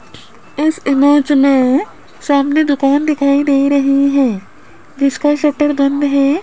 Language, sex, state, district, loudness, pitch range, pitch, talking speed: Hindi, female, Rajasthan, Jaipur, -13 LUFS, 275-295 Hz, 280 Hz, 130 wpm